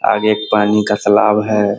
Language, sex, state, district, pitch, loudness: Hindi, male, Bihar, Sitamarhi, 105 Hz, -14 LUFS